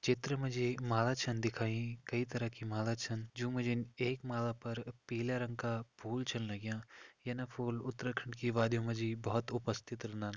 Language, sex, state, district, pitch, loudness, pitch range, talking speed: Hindi, male, Uttarakhand, Tehri Garhwal, 120 Hz, -39 LUFS, 115-125 Hz, 180 wpm